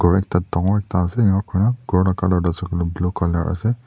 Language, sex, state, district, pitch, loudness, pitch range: Nagamese, male, Nagaland, Dimapur, 90 Hz, -20 LUFS, 90-100 Hz